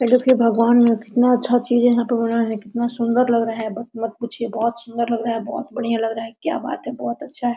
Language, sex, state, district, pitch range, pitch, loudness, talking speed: Hindi, female, Jharkhand, Sahebganj, 230-240 Hz, 235 Hz, -20 LUFS, 270 wpm